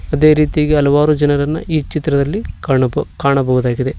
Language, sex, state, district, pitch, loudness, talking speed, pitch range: Kannada, male, Karnataka, Koppal, 145 Hz, -15 LUFS, 120 wpm, 140-155 Hz